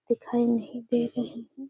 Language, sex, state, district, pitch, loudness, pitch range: Hindi, female, Bihar, Gaya, 240 Hz, -28 LUFS, 235-245 Hz